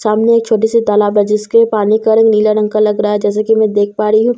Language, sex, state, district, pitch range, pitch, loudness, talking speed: Hindi, female, Bihar, Katihar, 210-220 Hz, 215 Hz, -12 LUFS, 330 wpm